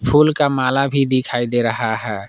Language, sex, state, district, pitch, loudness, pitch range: Hindi, male, Jharkhand, Palamu, 130 Hz, -17 LUFS, 115-140 Hz